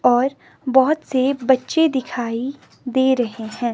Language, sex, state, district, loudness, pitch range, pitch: Hindi, female, Himachal Pradesh, Shimla, -19 LUFS, 245-270 Hz, 260 Hz